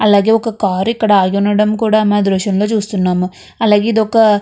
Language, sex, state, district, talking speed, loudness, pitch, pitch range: Telugu, female, Andhra Pradesh, Chittoor, 190 wpm, -13 LUFS, 210 Hz, 200-220 Hz